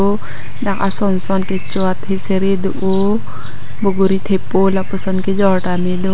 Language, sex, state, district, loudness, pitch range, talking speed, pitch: Karbi, female, Assam, Karbi Anglong, -17 LUFS, 185-195 Hz, 115 wpm, 190 Hz